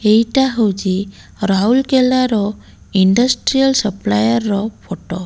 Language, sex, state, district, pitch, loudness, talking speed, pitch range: Odia, female, Odisha, Malkangiri, 210 Hz, -15 LUFS, 105 wpm, 195-255 Hz